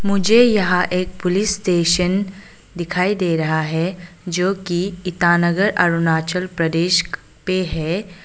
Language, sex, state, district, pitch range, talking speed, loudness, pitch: Hindi, female, Arunachal Pradesh, Papum Pare, 170-190 Hz, 115 wpm, -18 LUFS, 180 Hz